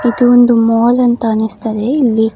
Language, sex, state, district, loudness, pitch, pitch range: Kannada, female, Karnataka, Dakshina Kannada, -11 LUFS, 235 Hz, 220-245 Hz